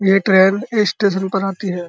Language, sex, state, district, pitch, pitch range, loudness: Hindi, male, Uttar Pradesh, Muzaffarnagar, 195 Hz, 190-200 Hz, -16 LUFS